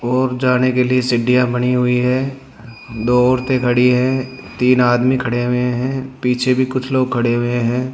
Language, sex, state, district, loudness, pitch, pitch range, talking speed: Hindi, male, Rajasthan, Jaipur, -16 LUFS, 125 Hz, 125-130 Hz, 180 wpm